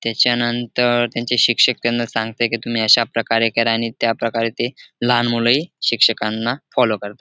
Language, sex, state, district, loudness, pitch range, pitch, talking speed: Marathi, male, Maharashtra, Dhule, -18 LUFS, 115-120 Hz, 115 Hz, 160 wpm